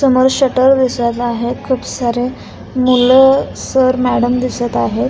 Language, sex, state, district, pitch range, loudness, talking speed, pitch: Marathi, female, Maharashtra, Pune, 245-260 Hz, -13 LUFS, 130 wpm, 255 Hz